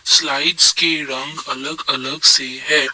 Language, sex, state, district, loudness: Hindi, male, Assam, Kamrup Metropolitan, -15 LUFS